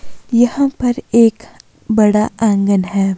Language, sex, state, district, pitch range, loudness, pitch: Hindi, female, Himachal Pradesh, Shimla, 200-240 Hz, -14 LUFS, 220 Hz